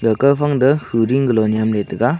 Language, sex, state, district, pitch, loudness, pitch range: Wancho, male, Arunachal Pradesh, Longding, 120 Hz, -16 LUFS, 110-140 Hz